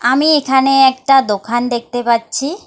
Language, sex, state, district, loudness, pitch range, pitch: Bengali, female, West Bengal, Alipurduar, -13 LUFS, 240-270 Hz, 260 Hz